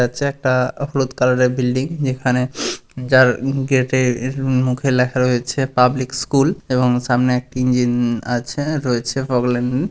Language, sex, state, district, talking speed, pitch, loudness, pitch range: Bengali, male, West Bengal, Purulia, 135 wpm, 125 Hz, -18 LUFS, 125-135 Hz